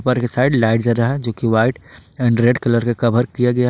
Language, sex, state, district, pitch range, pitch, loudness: Hindi, male, Jharkhand, Ranchi, 115-125 Hz, 120 Hz, -17 LUFS